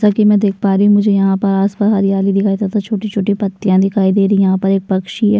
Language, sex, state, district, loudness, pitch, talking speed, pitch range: Hindi, female, Uttarakhand, Tehri Garhwal, -14 LUFS, 200 Hz, 300 wpm, 195-205 Hz